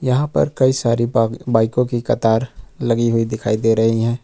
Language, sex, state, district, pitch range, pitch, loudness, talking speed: Hindi, male, Jharkhand, Ranchi, 115-125 Hz, 115 Hz, -18 LUFS, 185 wpm